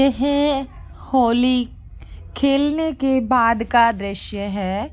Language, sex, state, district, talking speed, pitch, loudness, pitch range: Hindi, male, Jharkhand, Jamtara, 110 wpm, 245 Hz, -19 LUFS, 200-275 Hz